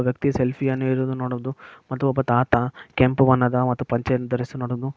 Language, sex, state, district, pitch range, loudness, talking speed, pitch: Kannada, male, Karnataka, Mysore, 125-135 Hz, -22 LUFS, 155 wpm, 130 Hz